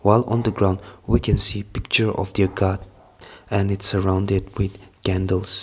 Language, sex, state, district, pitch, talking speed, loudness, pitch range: English, male, Nagaland, Kohima, 100 Hz, 180 wpm, -20 LUFS, 95-105 Hz